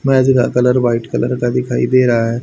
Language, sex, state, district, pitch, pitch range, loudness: Hindi, male, Haryana, Charkhi Dadri, 125 Hz, 120-130 Hz, -14 LUFS